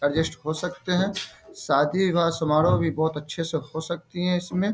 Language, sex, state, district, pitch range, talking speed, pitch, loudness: Hindi, male, Bihar, Bhagalpur, 155-180 Hz, 190 wpm, 165 Hz, -25 LUFS